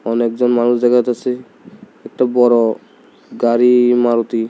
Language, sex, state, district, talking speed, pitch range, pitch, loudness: Bengali, male, Tripura, South Tripura, 120 wpm, 120-125 Hz, 120 Hz, -14 LUFS